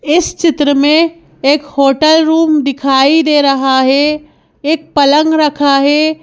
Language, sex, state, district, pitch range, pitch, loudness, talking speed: Hindi, female, Madhya Pradesh, Bhopal, 280-315 Hz, 295 Hz, -11 LUFS, 135 wpm